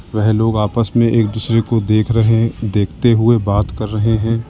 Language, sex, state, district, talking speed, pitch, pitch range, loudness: Hindi, male, Uttar Pradesh, Lalitpur, 200 wpm, 110 Hz, 110-115 Hz, -15 LUFS